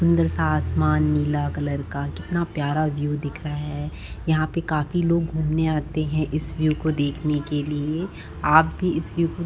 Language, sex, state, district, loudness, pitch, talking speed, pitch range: Hindi, female, Chhattisgarh, Bastar, -24 LUFS, 150 Hz, 195 wpm, 140-160 Hz